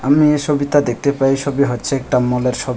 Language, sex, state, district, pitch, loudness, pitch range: Bengali, male, Tripura, West Tripura, 135 Hz, -16 LUFS, 125-145 Hz